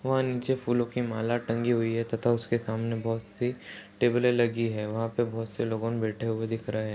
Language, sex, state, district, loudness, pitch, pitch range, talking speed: Hindi, male, Uttar Pradesh, Deoria, -29 LUFS, 115 Hz, 115-120 Hz, 215 wpm